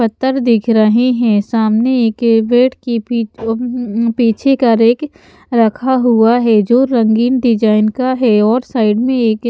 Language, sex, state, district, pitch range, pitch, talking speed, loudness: Hindi, female, Haryana, Charkhi Dadri, 225-245 Hz, 235 Hz, 170 wpm, -13 LUFS